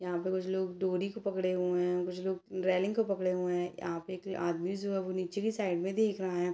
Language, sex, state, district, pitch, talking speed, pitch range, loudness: Hindi, female, Bihar, Purnia, 185 Hz, 275 wpm, 180-190 Hz, -33 LUFS